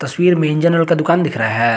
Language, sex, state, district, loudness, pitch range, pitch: Hindi, male, Jharkhand, Garhwa, -15 LUFS, 130-170 Hz, 160 Hz